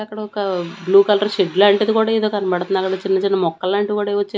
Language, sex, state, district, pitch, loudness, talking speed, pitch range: Telugu, female, Andhra Pradesh, Annamaya, 200 Hz, -18 LUFS, 245 wpm, 190-210 Hz